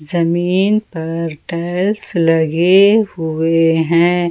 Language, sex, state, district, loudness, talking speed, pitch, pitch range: Hindi, female, Jharkhand, Ranchi, -15 LUFS, 85 wpm, 170 Hz, 165-185 Hz